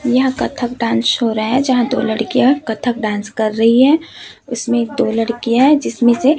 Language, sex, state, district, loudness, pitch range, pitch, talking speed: Hindi, female, Chhattisgarh, Raipur, -15 LUFS, 225-260 Hz, 240 Hz, 205 wpm